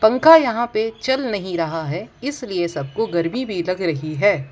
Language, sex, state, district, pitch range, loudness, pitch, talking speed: Hindi, female, Gujarat, Valsad, 170-240 Hz, -20 LUFS, 205 Hz, 185 wpm